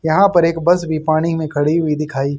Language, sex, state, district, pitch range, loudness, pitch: Hindi, male, Haryana, Rohtak, 150-165 Hz, -16 LUFS, 160 Hz